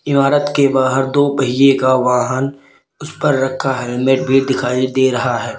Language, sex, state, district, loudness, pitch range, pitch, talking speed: Hindi, male, Uttar Pradesh, Lalitpur, -15 LUFS, 130-140 Hz, 135 Hz, 185 wpm